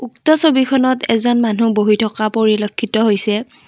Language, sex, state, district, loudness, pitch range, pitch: Assamese, female, Assam, Kamrup Metropolitan, -15 LUFS, 215-250 Hz, 225 Hz